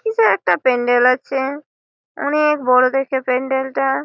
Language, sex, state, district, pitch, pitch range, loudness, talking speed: Bengali, female, West Bengal, Malda, 265 Hz, 255-285 Hz, -17 LUFS, 135 wpm